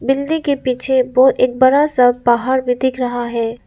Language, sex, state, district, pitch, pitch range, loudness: Hindi, female, Arunachal Pradesh, Lower Dibang Valley, 255 Hz, 245-265 Hz, -15 LUFS